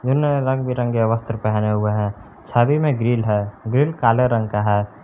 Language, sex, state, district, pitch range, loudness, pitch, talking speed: Hindi, male, Jharkhand, Palamu, 105-130 Hz, -19 LUFS, 115 Hz, 190 wpm